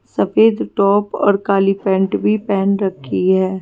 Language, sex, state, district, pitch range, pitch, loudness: Hindi, female, Delhi, New Delhi, 190-205 Hz, 195 Hz, -16 LUFS